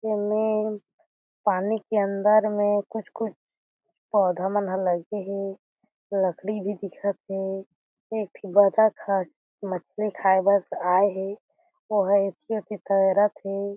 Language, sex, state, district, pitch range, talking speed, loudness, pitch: Chhattisgarhi, female, Chhattisgarh, Jashpur, 195-215 Hz, 120 wpm, -25 LUFS, 200 Hz